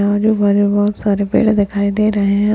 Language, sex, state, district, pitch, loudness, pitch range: Hindi, male, Uttarakhand, Tehri Garhwal, 205 Hz, -15 LUFS, 200-210 Hz